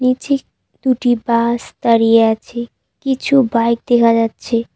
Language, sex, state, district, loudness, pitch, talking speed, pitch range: Bengali, female, West Bengal, Cooch Behar, -15 LUFS, 235 Hz, 115 wpm, 230-255 Hz